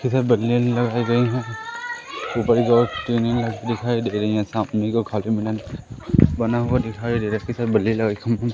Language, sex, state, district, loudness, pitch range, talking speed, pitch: Hindi, male, Madhya Pradesh, Umaria, -21 LUFS, 110-120 Hz, 175 wpm, 115 Hz